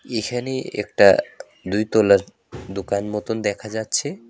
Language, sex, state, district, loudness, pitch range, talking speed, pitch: Bengali, male, West Bengal, Alipurduar, -20 LUFS, 100-115 Hz, 110 wpm, 105 Hz